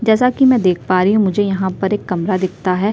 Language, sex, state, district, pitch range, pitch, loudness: Hindi, female, Chhattisgarh, Sukma, 185-210 Hz, 190 Hz, -15 LUFS